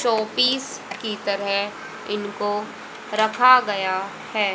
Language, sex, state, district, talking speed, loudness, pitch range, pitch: Hindi, female, Haryana, Rohtak, 90 wpm, -22 LUFS, 205-245 Hz, 210 Hz